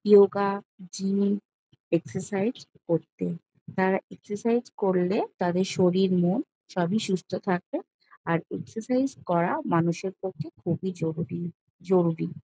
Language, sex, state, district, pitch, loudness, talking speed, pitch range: Bengali, female, West Bengal, Jhargram, 185 Hz, -27 LUFS, 100 wpm, 170-200 Hz